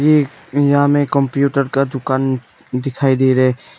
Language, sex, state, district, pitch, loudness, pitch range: Hindi, male, Nagaland, Kohima, 135 Hz, -16 LUFS, 130-140 Hz